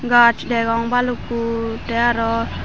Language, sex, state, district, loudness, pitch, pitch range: Chakma, female, Tripura, Dhalai, -19 LUFS, 235 Hz, 230-240 Hz